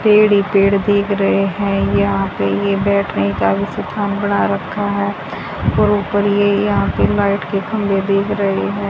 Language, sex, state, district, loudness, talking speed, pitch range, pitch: Hindi, female, Haryana, Jhajjar, -16 LUFS, 180 wpm, 195-205 Hz, 200 Hz